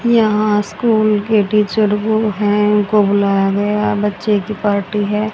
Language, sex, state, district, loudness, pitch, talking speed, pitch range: Hindi, female, Haryana, Rohtak, -15 LUFS, 210 Hz, 155 wpm, 205-215 Hz